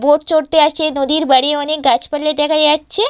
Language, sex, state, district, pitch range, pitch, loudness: Bengali, female, West Bengal, Purulia, 295-310 Hz, 300 Hz, -14 LUFS